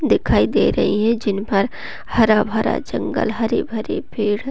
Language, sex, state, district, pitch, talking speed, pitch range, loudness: Hindi, female, Bihar, Gopalganj, 220 Hz, 145 wpm, 205-230 Hz, -19 LUFS